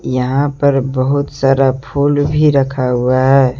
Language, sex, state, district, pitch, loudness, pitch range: Hindi, male, Jharkhand, Deoghar, 135 Hz, -14 LUFS, 130-140 Hz